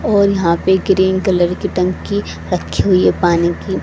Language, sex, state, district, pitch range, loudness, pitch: Hindi, female, Haryana, Charkhi Dadri, 175-200 Hz, -15 LUFS, 190 Hz